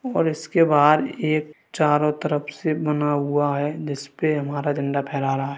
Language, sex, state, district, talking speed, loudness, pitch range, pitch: Hindi, male, Uttar Pradesh, Varanasi, 180 wpm, -22 LUFS, 145-155 Hz, 150 Hz